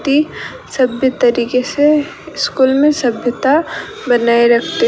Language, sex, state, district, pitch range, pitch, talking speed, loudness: Hindi, female, Rajasthan, Bikaner, 240-295 Hz, 260 Hz, 125 wpm, -14 LUFS